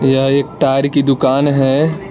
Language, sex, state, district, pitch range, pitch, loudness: Hindi, male, Arunachal Pradesh, Lower Dibang Valley, 135-145 Hz, 140 Hz, -14 LUFS